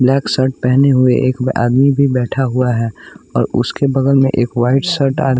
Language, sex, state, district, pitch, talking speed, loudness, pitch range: Hindi, male, Bihar, West Champaran, 130 Hz, 200 wpm, -14 LUFS, 125-135 Hz